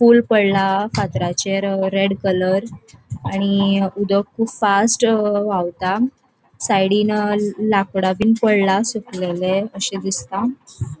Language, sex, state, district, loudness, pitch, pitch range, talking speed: Konkani, female, Goa, North and South Goa, -18 LUFS, 200 Hz, 195-215 Hz, 85 wpm